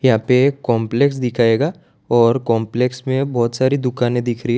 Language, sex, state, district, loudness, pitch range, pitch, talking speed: Hindi, male, Gujarat, Valsad, -17 LUFS, 115-130 Hz, 125 Hz, 185 wpm